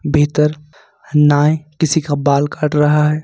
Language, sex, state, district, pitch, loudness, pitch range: Hindi, male, Jharkhand, Ranchi, 150 Hz, -15 LUFS, 145-150 Hz